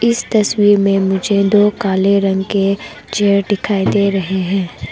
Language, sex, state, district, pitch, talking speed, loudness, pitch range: Hindi, female, Arunachal Pradesh, Longding, 200 Hz, 160 wpm, -14 LUFS, 195-205 Hz